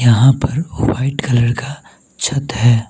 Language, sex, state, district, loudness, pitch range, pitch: Hindi, male, Mizoram, Aizawl, -16 LUFS, 120-140 Hz, 130 Hz